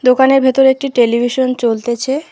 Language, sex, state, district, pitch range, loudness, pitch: Bengali, female, West Bengal, Alipurduar, 240-265 Hz, -13 LUFS, 255 Hz